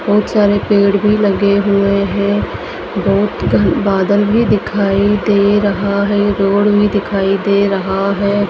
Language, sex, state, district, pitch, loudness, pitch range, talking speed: Hindi, female, Madhya Pradesh, Dhar, 200 Hz, -13 LUFS, 200-205 Hz, 150 wpm